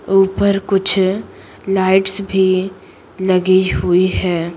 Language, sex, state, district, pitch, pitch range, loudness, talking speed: Hindi, female, Bihar, Patna, 190 Hz, 185-195 Hz, -15 LUFS, 90 wpm